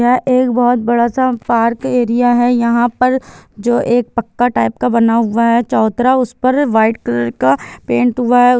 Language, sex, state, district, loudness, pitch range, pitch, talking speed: Hindi, female, Chhattisgarh, Bilaspur, -14 LUFS, 230-250 Hz, 240 Hz, 195 wpm